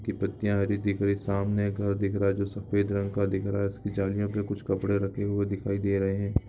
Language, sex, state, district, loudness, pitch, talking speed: Hindi, male, Bihar, Darbhanga, -29 LUFS, 100 Hz, 280 wpm